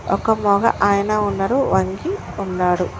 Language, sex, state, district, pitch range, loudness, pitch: Telugu, female, Telangana, Mahabubabad, 190-220 Hz, -19 LUFS, 200 Hz